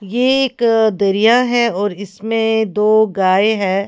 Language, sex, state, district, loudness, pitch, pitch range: Hindi, female, Odisha, Khordha, -15 LUFS, 220 Hz, 200-230 Hz